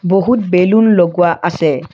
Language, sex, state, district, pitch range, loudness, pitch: Assamese, female, Assam, Kamrup Metropolitan, 170-195 Hz, -12 LUFS, 180 Hz